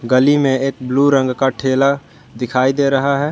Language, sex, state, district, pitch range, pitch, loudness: Hindi, male, Jharkhand, Garhwa, 130-140 Hz, 135 Hz, -15 LUFS